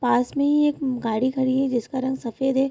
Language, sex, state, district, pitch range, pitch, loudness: Hindi, female, Bihar, Vaishali, 245-270 Hz, 260 Hz, -23 LUFS